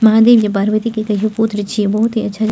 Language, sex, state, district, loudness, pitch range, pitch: Maithili, female, Bihar, Purnia, -14 LUFS, 210-225 Hz, 215 Hz